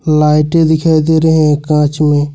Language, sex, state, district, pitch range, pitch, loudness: Hindi, male, Jharkhand, Ranchi, 150-160 Hz, 155 Hz, -11 LUFS